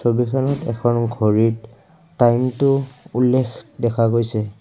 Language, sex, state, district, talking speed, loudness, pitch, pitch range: Assamese, male, Assam, Kamrup Metropolitan, 90 wpm, -19 LUFS, 120 Hz, 115-130 Hz